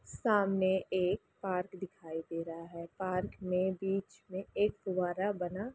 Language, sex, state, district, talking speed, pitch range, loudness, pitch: Hindi, female, Bihar, Gaya, 155 wpm, 180-195 Hz, -35 LUFS, 185 Hz